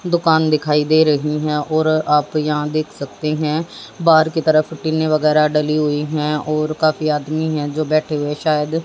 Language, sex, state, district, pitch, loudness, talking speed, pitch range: Hindi, female, Haryana, Jhajjar, 155 Hz, -17 LUFS, 185 wpm, 150-155 Hz